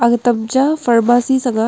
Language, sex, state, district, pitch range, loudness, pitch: Wancho, female, Arunachal Pradesh, Longding, 235-260 Hz, -14 LUFS, 240 Hz